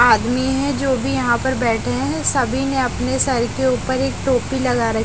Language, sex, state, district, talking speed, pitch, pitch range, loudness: Hindi, female, Haryana, Charkhi Dadri, 215 wpm, 260 Hz, 245-265 Hz, -19 LUFS